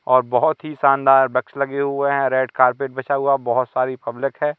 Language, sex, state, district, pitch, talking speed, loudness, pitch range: Hindi, male, Madhya Pradesh, Katni, 135 Hz, 220 wpm, -19 LUFS, 130-140 Hz